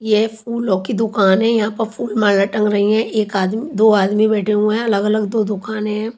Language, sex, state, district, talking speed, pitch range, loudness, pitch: Hindi, female, Chhattisgarh, Raipur, 225 wpm, 210-225 Hz, -17 LUFS, 215 Hz